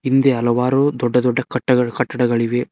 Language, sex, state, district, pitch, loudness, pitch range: Kannada, male, Karnataka, Koppal, 125 Hz, -18 LUFS, 120-130 Hz